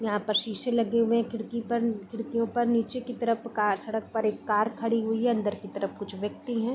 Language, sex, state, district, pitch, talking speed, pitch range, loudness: Hindi, female, Bihar, Vaishali, 230 Hz, 240 wpm, 215-235 Hz, -28 LUFS